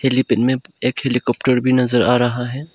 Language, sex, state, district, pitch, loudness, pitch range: Hindi, male, Arunachal Pradesh, Longding, 125 Hz, -17 LUFS, 125-130 Hz